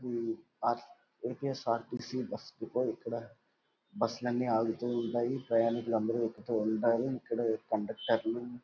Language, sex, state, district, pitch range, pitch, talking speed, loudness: Telugu, male, Andhra Pradesh, Visakhapatnam, 115-120 Hz, 115 Hz, 120 wpm, -34 LUFS